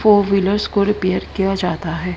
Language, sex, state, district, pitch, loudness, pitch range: Hindi, female, Haryana, Charkhi Dadri, 195 Hz, -18 LUFS, 180-205 Hz